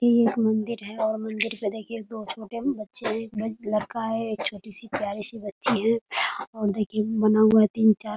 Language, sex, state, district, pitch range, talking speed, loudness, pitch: Hindi, female, Bihar, Muzaffarpur, 215-230 Hz, 205 wpm, -23 LUFS, 220 Hz